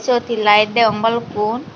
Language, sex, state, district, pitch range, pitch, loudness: Chakma, female, Tripura, Dhalai, 210-235 Hz, 225 Hz, -16 LUFS